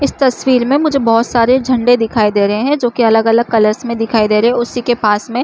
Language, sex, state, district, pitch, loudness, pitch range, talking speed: Chhattisgarhi, female, Chhattisgarh, Jashpur, 235 Hz, -13 LUFS, 225-255 Hz, 265 wpm